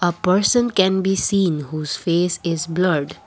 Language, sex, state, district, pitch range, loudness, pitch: English, female, Assam, Kamrup Metropolitan, 165-190 Hz, -19 LUFS, 180 Hz